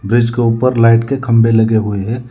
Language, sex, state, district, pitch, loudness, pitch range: Hindi, male, Telangana, Hyderabad, 115 Hz, -13 LUFS, 115-120 Hz